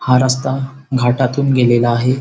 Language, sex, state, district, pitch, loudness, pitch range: Marathi, male, Maharashtra, Sindhudurg, 130 Hz, -15 LUFS, 125-135 Hz